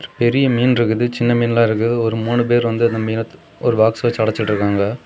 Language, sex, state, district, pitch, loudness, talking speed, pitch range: Tamil, male, Tamil Nadu, Kanyakumari, 115 Hz, -17 LUFS, 190 wpm, 110-120 Hz